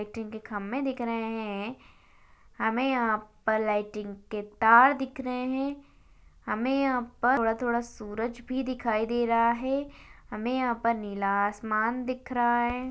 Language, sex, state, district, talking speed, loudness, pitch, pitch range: Hindi, female, Chhattisgarh, Balrampur, 160 wpm, -28 LUFS, 235 Hz, 215-255 Hz